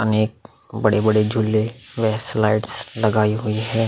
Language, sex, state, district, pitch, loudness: Hindi, male, Bihar, Vaishali, 110 Hz, -20 LUFS